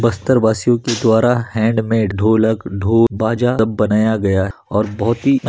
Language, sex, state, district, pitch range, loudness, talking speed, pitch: Hindi, male, Chhattisgarh, Bastar, 105-115 Hz, -16 LUFS, 175 wpm, 110 Hz